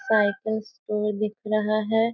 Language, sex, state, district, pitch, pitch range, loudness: Hindi, female, Bihar, Sitamarhi, 215 Hz, 210-220 Hz, -25 LUFS